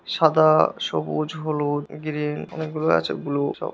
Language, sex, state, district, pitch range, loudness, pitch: Bengali, male, West Bengal, Jhargram, 145-160 Hz, -23 LUFS, 155 Hz